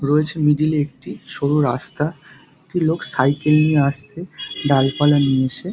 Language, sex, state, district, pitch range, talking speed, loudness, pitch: Bengali, male, West Bengal, Dakshin Dinajpur, 140-155 Hz, 155 wpm, -18 LUFS, 145 Hz